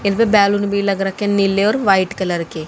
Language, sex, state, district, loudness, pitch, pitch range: Hindi, female, Haryana, Jhajjar, -16 LUFS, 200 Hz, 190-205 Hz